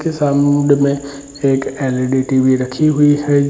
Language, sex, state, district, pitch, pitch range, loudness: Hindi, male, Bihar, Jamui, 140 Hz, 135-145 Hz, -15 LUFS